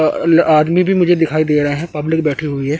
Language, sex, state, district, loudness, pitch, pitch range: Hindi, male, Chandigarh, Chandigarh, -14 LUFS, 155 Hz, 150-165 Hz